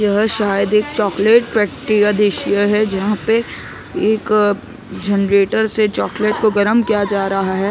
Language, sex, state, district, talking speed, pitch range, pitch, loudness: Hindi, male, Maharashtra, Mumbai Suburban, 165 wpm, 200-215 Hz, 210 Hz, -16 LUFS